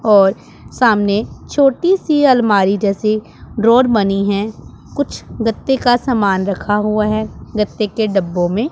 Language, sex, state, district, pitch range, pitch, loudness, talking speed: Hindi, male, Punjab, Pathankot, 200-245 Hz, 215 Hz, -15 LUFS, 140 wpm